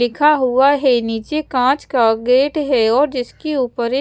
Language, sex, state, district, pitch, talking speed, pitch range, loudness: Hindi, female, Chandigarh, Chandigarh, 260 Hz, 180 wpm, 240-290 Hz, -16 LUFS